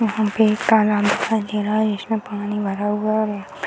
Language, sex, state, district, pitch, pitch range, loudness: Hindi, female, Bihar, Purnia, 210 Hz, 205-220 Hz, -20 LUFS